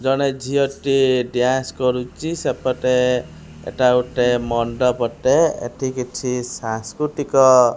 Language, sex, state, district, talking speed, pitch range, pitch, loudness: Odia, male, Odisha, Khordha, 95 wpm, 120-135 Hz, 125 Hz, -19 LUFS